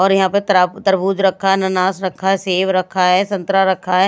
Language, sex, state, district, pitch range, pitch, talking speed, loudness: Hindi, female, Bihar, Patna, 185-195 Hz, 190 Hz, 205 wpm, -16 LUFS